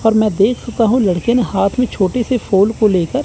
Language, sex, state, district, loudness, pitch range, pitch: Hindi, male, Chandigarh, Chandigarh, -15 LUFS, 195-245 Hz, 220 Hz